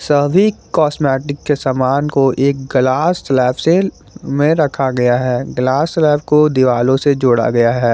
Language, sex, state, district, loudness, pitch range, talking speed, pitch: Hindi, male, Jharkhand, Garhwa, -14 LUFS, 130-150 Hz, 160 wpm, 135 Hz